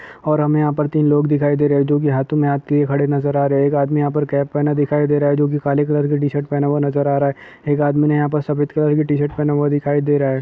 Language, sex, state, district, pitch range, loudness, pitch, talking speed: Hindi, male, Chhattisgarh, Kabirdham, 145-150 Hz, -17 LUFS, 145 Hz, 335 wpm